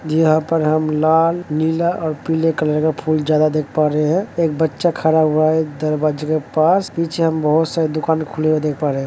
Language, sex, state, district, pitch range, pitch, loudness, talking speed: Hindi, male, Uttar Pradesh, Jalaun, 155-160 Hz, 155 Hz, -17 LUFS, 225 wpm